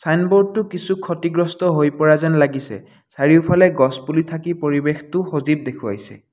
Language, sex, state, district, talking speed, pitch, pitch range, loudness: Assamese, male, Assam, Kamrup Metropolitan, 135 wpm, 155 Hz, 145-175 Hz, -18 LUFS